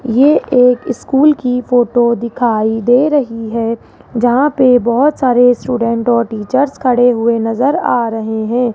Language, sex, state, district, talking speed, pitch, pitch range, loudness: Hindi, female, Rajasthan, Jaipur, 150 wpm, 245 Hz, 230-255 Hz, -13 LUFS